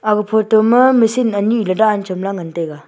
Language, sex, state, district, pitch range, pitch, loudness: Wancho, female, Arunachal Pradesh, Longding, 190-225 Hz, 215 Hz, -15 LUFS